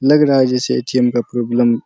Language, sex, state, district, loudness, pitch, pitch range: Hindi, male, Bihar, Araria, -15 LUFS, 125 Hz, 120-130 Hz